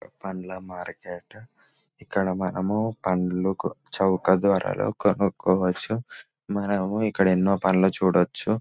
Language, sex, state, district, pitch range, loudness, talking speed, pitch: Telugu, male, Telangana, Nalgonda, 95-100 Hz, -24 LUFS, 95 wpm, 95 Hz